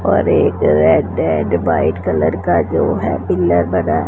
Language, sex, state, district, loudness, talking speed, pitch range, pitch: Hindi, female, Punjab, Pathankot, -15 LUFS, 160 wpm, 80-90 Hz, 85 Hz